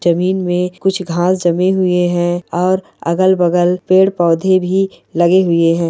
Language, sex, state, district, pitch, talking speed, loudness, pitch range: Hindi, female, Bihar, Bhagalpur, 180 Hz, 140 wpm, -14 LUFS, 175-185 Hz